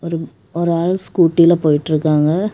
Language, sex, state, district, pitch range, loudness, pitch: Tamil, female, Tamil Nadu, Kanyakumari, 155-175 Hz, -15 LUFS, 170 Hz